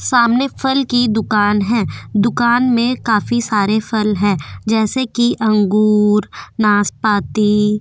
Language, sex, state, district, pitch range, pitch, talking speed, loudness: Hindi, female, Goa, North and South Goa, 210-240 Hz, 215 Hz, 125 wpm, -15 LUFS